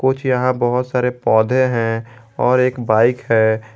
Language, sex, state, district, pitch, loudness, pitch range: Hindi, male, Jharkhand, Garhwa, 125 Hz, -17 LUFS, 115-125 Hz